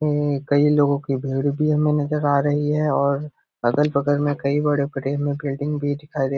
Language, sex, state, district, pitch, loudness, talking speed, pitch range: Hindi, male, Bihar, Supaul, 145 Hz, -21 LUFS, 205 wpm, 140-150 Hz